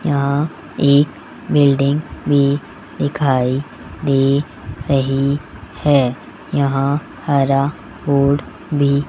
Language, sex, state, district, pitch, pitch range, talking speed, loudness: Hindi, male, Rajasthan, Jaipur, 140 Hz, 135-145 Hz, 85 wpm, -17 LUFS